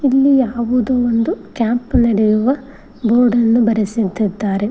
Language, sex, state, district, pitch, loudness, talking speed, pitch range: Kannada, female, Karnataka, Koppal, 235 Hz, -16 LUFS, 90 wpm, 220-250 Hz